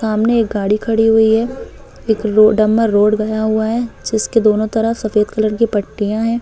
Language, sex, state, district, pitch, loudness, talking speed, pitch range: Hindi, female, Chhattisgarh, Bastar, 220 Hz, -15 LUFS, 195 wpm, 215-225 Hz